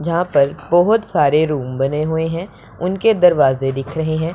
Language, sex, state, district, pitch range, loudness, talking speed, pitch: Hindi, male, Punjab, Pathankot, 145-175 Hz, -17 LUFS, 180 wpm, 160 Hz